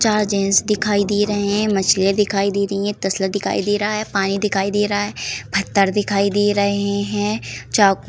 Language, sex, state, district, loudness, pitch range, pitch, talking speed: Hindi, female, Uttar Pradesh, Varanasi, -18 LUFS, 195-205 Hz, 200 Hz, 210 wpm